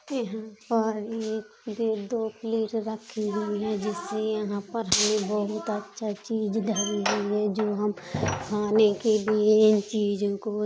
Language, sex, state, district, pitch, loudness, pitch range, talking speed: Bundeli, female, Uttar Pradesh, Jalaun, 215 Hz, -27 LUFS, 210-220 Hz, 155 wpm